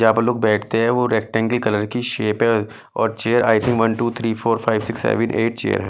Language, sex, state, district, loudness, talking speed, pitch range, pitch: Hindi, male, Delhi, New Delhi, -19 LUFS, 255 wpm, 110-120 Hz, 115 Hz